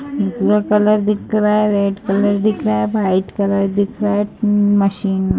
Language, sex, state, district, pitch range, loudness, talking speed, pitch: Hindi, female, Bihar, East Champaran, 195-210 Hz, -16 LUFS, 190 wpm, 205 Hz